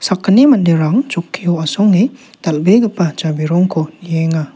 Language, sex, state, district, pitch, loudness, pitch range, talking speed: Garo, male, Meghalaya, South Garo Hills, 175 Hz, -14 LUFS, 160-210 Hz, 90 wpm